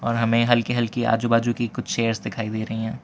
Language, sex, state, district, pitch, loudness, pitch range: Hindi, male, Gujarat, Valsad, 115 Hz, -22 LUFS, 115-120 Hz